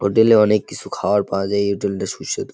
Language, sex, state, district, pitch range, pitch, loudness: Bengali, male, West Bengal, Jalpaiguri, 100-105 Hz, 100 Hz, -18 LUFS